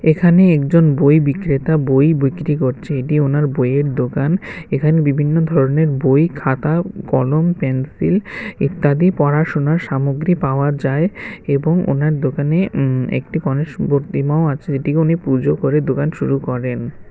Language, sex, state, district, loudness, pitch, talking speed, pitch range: Bengali, male, Tripura, West Tripura, -16 LUFS, 145 Hz, 135 wpm, 140-160 Hz